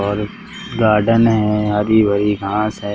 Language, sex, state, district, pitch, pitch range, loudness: Hindi, male, Madhya Pradesh, Katni, 105 Hz, 105-110 Hz, -16 LUFS